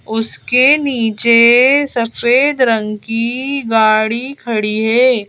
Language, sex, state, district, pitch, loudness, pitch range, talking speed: Hindi, female, Madhya Pradesh, Bhopal, 235 Hz, -13 LUFS, 225-255 Hz, 90 wpm